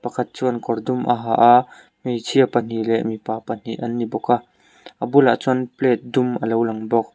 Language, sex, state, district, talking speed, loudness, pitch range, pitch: Mizo, male, Mizoram, Aizawl, 210 wpm, -20 LUFS, 115-125 Hz, 120 Hz